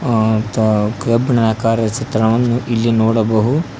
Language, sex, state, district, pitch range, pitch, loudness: Kannada, male, Karnataka, Koppal, 110-120 Hz, 115 Hz, -15 LUFS